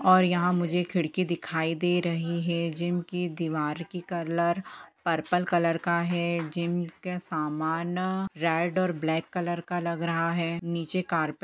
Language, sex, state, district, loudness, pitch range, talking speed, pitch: Hindi, female, Jharkhand, Sahebganj, -28 LUFS, 165-175 Hz, 155 wpm, 170 Hz